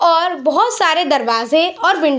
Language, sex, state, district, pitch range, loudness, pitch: Hindi, female, Bihar, Saharsa, 300-350 Hz, -15 LUFS, 330 Hz